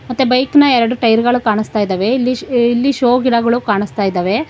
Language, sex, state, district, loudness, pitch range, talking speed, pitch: Kannada, female, Karnataka, Bangalore, -14 LUFS, 215-255 Hz, 160 wpm, 240 Hz